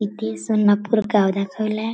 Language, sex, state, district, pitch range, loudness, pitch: Marathi, female, Maharashtra, Chandrapur, 200-215 Hz, -20 LUFS, 210 Hz